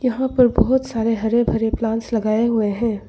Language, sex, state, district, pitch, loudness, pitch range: Hindi, female, Arunachal Pradesh, Longding, 230 Hz, -19 LUFS, 225-250 Hz